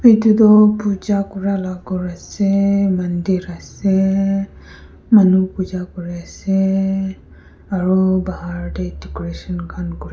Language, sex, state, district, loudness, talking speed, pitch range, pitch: Nagamese, female, Nagaland, Kohima, -17 LUFS, 95 wpm, 175-195 Hz, 190 Hz